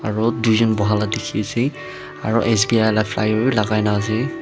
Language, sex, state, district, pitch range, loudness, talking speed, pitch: Nagamese, male, Nagaland, Dimapur, 105-115 Hz, -19 LUFS, 165 wpm, 110 Hz